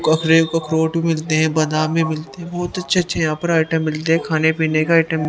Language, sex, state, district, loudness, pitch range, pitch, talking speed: Hindi, male, Haryana, Rohtak, -18 LUFS, 155-165 Hz, 160 Hz, 195 wpm